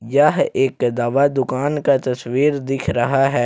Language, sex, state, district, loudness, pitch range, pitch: Hindi, male, Jharkhand, Ranchi, -18 LUFS, 125-140 Hz, 135 Hz